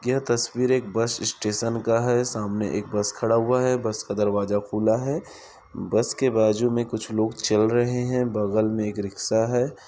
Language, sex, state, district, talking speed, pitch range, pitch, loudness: Hindi, male, Chhattisgarh, Bilaspur, 195 wpm, 105-120 Hz, 115 Hz, -24 LUFS